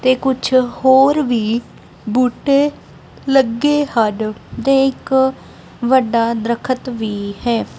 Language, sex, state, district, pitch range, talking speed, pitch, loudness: Punjabi, female, Punjab, Kapurthala, 230-270 Hz, 100 wpm, 255 Hz, -16 LUFS